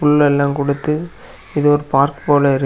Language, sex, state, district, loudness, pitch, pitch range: Tamil, male, Tamil Nadu, Kanyakumari, -16 LUFS, 145 Hz, 140-150 Hz